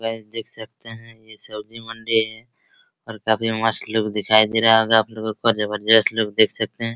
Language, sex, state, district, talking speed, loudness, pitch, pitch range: Hindi, male, Bihar, Araria, 225 wpm, -19 LUFS, 110 Hz, 110-115 Hz